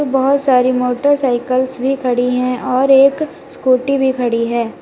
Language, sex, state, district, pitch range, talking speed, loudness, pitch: Hindi, female, Uttar Pradesh, Lalitpur, 250-270 Hz, 150 wpm, -15 LUFS, 255 Hz